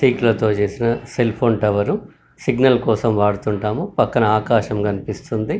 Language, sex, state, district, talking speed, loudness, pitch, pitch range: Telugu, male, Telangana, Karimnagar, 120 wpm, -19 LUFS, 110 Hz, 105-120 Hz